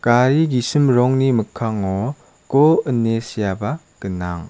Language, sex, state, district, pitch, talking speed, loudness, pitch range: Garo, male, Meghalaya, South Garo Hills, 120 Hz, 105 wpm, -18 LUFS, 105-135 Hz